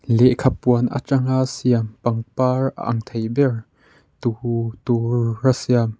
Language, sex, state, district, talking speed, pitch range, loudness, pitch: Mizo, male, Mizoram, Aizawl, 110 wpm, 115-130 Hz, -20 LUFS, 120 Hz